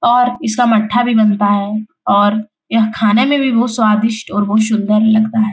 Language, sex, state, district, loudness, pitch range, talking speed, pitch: Hindi, female, Bihar, Jahanabad, -13 LUFS, 210-235 Hz, 195 wpm, 220 Hz